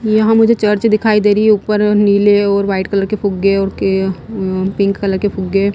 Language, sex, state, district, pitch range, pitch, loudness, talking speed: Hindi, female, Himachal Pradesh, Shimla, 195-210 Hz, 200 Hz, -13 LUFS, 200 wpm